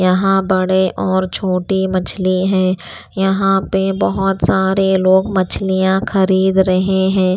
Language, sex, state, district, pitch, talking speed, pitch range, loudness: Hindi, female, Punjab, Pathankot, 190 Hz, 120 wpm, 185-195 Hz, -15 LUFS